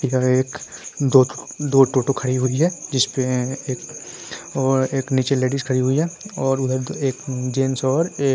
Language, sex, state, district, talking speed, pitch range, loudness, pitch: Hindi, male, Uttar Pradesh, Muzaffarnagar, 170 wpm, 130-140 Hz, -20 LUFS, 135 Hz